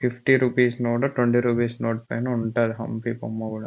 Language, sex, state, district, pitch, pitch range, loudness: Telugu, male, Andhra Pradesh, Anantapur, 120 Hz, 115-125 Hz, -23 LUFS